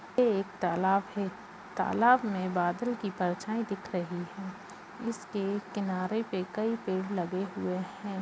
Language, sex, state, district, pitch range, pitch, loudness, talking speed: Hindi, female, Bihar, Saran, 185-215 Hz, 195 Hz, -32 LUFS, 145 wpm